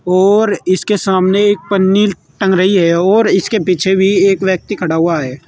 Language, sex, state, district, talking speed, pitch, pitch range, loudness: Hindi, male, Uttar Pradesh, Saharanpur, 185 wpm, 190 Hz, 180-200 Hz, -12 LUFS